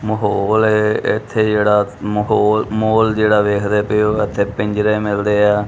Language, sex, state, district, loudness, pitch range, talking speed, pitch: Punjabi, male, Punjab, Kapurthala, -16 LUFS, 105-110 Hz, 150 wpm, 105 Hz